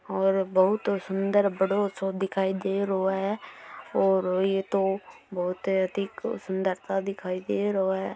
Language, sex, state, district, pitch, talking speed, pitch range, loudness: Marwari, female, Rajasthan, Churu, 195 Hz, 140 wpm, 190-195 Hz, -27 LUFS